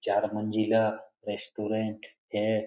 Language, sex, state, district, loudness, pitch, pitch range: Hindi, male, Bihar, Lakhisarai, -30 LUFS, 110 Hz, 105-110 Hz